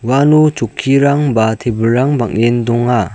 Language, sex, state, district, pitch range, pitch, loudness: Garo, male, Meghalaya, South Garo Hills, 115-140 Hz, 120 Hz, -13 LUFS